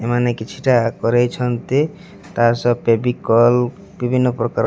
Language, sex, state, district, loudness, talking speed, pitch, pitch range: Odia, male, Odisha, Malkangiri, -17 LUFS, 115 wpm, 120 Hz, 115-125 Hz